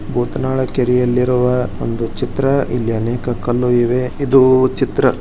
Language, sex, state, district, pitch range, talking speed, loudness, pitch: Kannada, male, Karnataka, Bijapur, 120-130 Hz, 70 wpm, -16 LUFS, 125 Hz